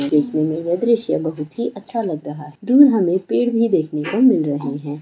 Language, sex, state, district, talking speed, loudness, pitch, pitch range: Hindi, female, Chhattisgarh, Korba, 225 wpm, -18 LUFS, 160 Hz, 150-230 Hz